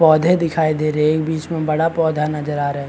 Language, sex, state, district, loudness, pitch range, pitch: Hindi, male, Chhattisgarh, Bastar, -18 LUFS, 150-160 Hz, 155 Hz